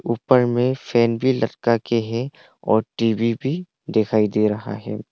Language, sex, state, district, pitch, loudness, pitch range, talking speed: Hindi, male, Arunachal Pradesh, Longding, 115 Hz, -21 LUFS, 110-125 Hz, 165 wpm